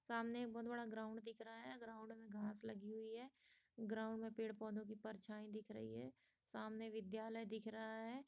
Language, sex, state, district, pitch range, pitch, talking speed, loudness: Hindi, female, Jharkhand, Sahebganj, 220-225 Hz, 220 Hz, 205 wpm, -51 LUFS